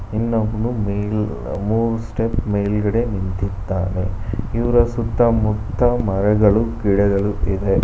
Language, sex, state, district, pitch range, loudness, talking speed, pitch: Kannada, male, Karnataka, Bangalore, 100-115 Hz, -19 LUFS, 85 wpm, 105 Hz